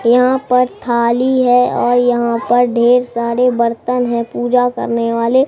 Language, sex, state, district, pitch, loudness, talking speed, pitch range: Hindi, male, Bihar, Katihar, 245 Hz, -14 LUFS, 155 wpm, 235-250 Hz